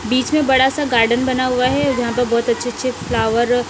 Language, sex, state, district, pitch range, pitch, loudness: Hindi, female, Punjab, Kapurthala, 240-260 Hz, 250 Hz, -17 LUFS